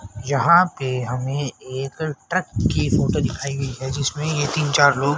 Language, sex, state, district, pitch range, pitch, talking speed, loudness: Hindi, male, Haryana, Rohtak, 130-150 Hz, 140 Hz, 175 wpm, -21 LUFS